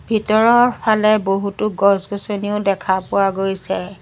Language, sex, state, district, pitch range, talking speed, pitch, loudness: Assamese, female, Assam, Sonitpur, 195-215 Hz, 105 wpm, 200 Hz, -17 LUFS